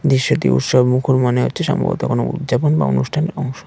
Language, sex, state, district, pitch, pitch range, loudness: Bengali, male, West Bengal, Cooch Behar, 130 Hz, 125-150 Hz, -17 LUFS